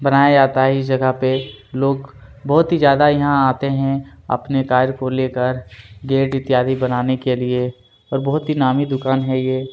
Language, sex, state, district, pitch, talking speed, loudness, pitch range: Hindi, male, Chhattisgarh, Kabirdham, 130 Hz, 185 wpm, -17 LUFS, 130-135 Hz